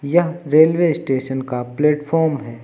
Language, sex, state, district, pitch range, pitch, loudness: Hindi, male, Uttar Pradesh, Lucknow, 130-165 Hz, 150 Hz, -18 LUFS